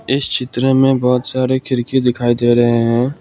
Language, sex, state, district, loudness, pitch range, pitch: Hindi, male, Assam, Kamrup Metropolitan, -15 LUFS, 120-130 Hz, 125 Hz